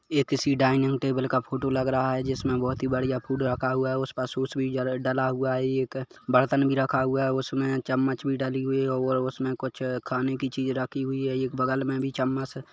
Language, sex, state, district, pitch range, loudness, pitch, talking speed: Hindi, male, Chhattisgarh, Kabirdham, 130-135 Hz, -27 LUFS, 130 Hz, 230 wpm